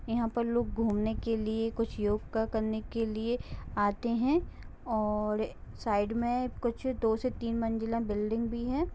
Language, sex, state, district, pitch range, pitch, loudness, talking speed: Hindi, female, Jharkhand, Jamtara, 220-235 Hz, 225 Hz, -32 LUFS, 160 wpm